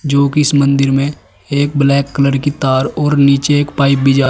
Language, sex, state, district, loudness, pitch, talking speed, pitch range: Hindi, male, Uttar Pradesh, Saharanpur, -13 LUFS, 140 Hz, 225 wpm, 135-145 Hz